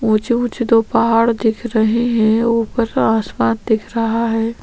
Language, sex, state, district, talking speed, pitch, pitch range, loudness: Hindi, female, Chhattisgarh, Sukma, 140 wpm, 230 Hz, 220-235 Hz, -16 LUFS